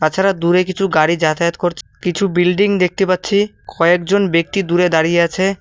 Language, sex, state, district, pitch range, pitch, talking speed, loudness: Bengali, male, West Bengal, Cooch Behar, 170-195 Hz, 180 Hz, 160 wpm, -15 LUFS